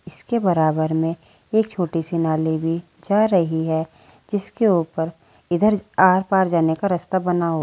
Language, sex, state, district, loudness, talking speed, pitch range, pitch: Hindi, female, Uttar Pradesh, Saharanpur, -20 LUFS, 155 wpm, 160-190 Hz, 170 Hz